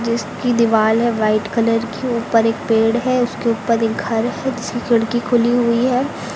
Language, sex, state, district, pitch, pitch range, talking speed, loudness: Hindi, female, Uttar Pradesh, Lucknow, 235 Hz, 225-240 Hz, 190 wpm, -17 LUFS